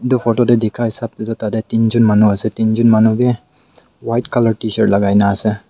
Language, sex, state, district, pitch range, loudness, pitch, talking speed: Nagamese, male, Nagaland, Dimapur, 110-120 Hz, -15 LUFS, 115 Hz, 200 wpm